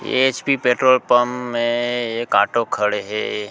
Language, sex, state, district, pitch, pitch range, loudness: Chhattisgarhi, male, Chhattisgarh, Sukma, 120 Hz, 115-130 Hz, -18 LUFS